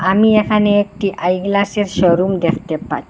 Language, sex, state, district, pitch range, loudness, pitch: Bengali, female, Assam, Hailakandi, 175-205 Hz, -15 LUFS, 195 Hz